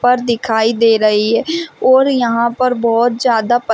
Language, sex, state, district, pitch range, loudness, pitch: Hindi, female, Chhattisgarh, Rajnandgaon, 230-250 Hz, -14 LUFS, 235 Hz